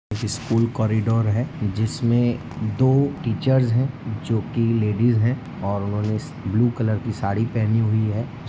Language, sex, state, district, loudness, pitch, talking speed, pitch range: Hindi, male, Andhra Pradesh, Anantapur, -22 LUFS, 115 Hz, 125 wpm, 110-120 Hz